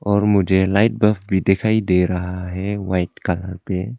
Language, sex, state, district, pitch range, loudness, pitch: Hindi, male, Arunachal Pradesh, Longding, 90-105 Hz, -19 LUFS, 95 Hz